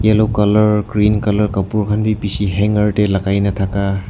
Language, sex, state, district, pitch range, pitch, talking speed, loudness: Nagamese, male, Nagaland, Kohima, 100-105 Hz, 105 Hz, 190 wpm, -16 LUFS